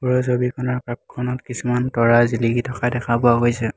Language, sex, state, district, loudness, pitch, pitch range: Assamese, male, Assam, Hailakandi, -20 LUFS, 125 Hz, 120-125 Hz